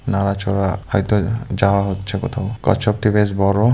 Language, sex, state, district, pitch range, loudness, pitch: Bengali, male, West Bengal, Dakshin Dinajpur, 100-105 Hz, -18 LUFS, 100 Hz